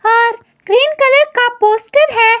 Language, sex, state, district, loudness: Hindi, female, Himachal Pradesh, Shimla, -11 LUFS